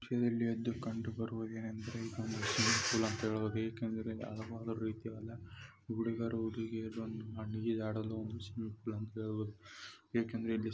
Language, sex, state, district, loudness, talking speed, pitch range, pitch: Kannada, male, Karnataka, Mysore, -39 LUFS, 90 wpm, 110-115 Hz, 110 Hz